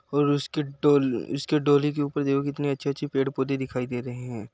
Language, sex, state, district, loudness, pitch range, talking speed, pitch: Hindi, male, Uttar Pradesh, Muzaffarnagar, -26 LUFS, 135-145 Hz, 200 wpm, 140 Hz